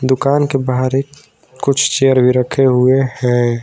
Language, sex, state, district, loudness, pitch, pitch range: Hindi, male, Jharkhand, Garhwa, -14 LUFS, 130 Hz, 125-135 Hz